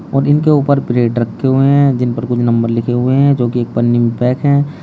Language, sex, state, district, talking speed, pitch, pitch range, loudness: Hindi, male, Uttar Pradesh, Shamli, 260 wpm, 125 Hz, 120-140 Hz, -13 LUFS